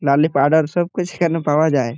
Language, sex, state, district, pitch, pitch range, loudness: Bengali, male, West Bengal, Purulia, 155 Hz, 140-170 Hz, -17 LUFS